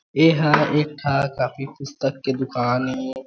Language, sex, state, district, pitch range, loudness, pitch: Chhattisgarhi, male, Chhattisgarh, Jashpur, 130-150 Hz, -21 LUFS, 135 Hz